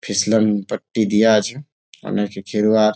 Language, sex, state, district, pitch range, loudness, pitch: Bengali, male, West Bengal, Jalpaiguri, 105-110 Hz, -18 LUFS, 105 Hz